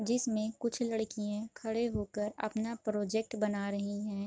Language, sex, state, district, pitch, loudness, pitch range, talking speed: Hindi, female, Bihar, Gopalganj, 215 Hz, -35 LUFS, 210-230 Hz, 155 wpm